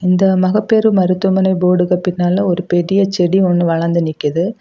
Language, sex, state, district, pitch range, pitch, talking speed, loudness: Tamil, female, Tamil Nadu, Kanyakumari, 175-190 Hz, 180 Hz, 145 wpm, -14 LUFS